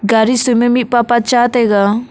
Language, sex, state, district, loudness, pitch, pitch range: Wancho, female, Arunachal Pradesh, Longding, -12 LUFS, 240 Hz, 225-245 Hz